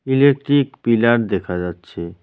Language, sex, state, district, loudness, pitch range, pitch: Bengali, male, West Bengal, Cooch Behar, -18 LUFS, 90-135 Hz, 115 Hz